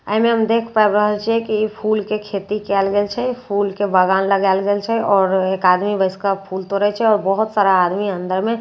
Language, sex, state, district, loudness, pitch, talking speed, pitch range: Maithili, female, Bihar, Katihar, -17 LUFS, 205 Hz, 250 wpm, 195-215 Hz